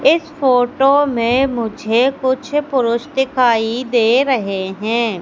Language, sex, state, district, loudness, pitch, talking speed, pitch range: Hindi, female, Madhya Pradesh, Katni, -16 LUFS, 250 Hz, 115 wpm, 230-270 Hz